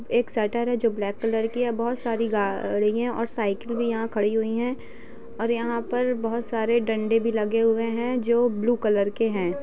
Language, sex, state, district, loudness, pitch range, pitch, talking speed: Hindi, female, Bihar, East Champaran, -25 LUFS, 220-235 Hz, 230 Hz, 195 wpm